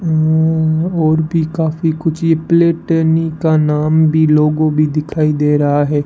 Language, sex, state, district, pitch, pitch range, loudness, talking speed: Hindi, male, Rajasthan, Bikaner, 160 Hz, 155-160 Hz, -14 LUFS, 160 wpm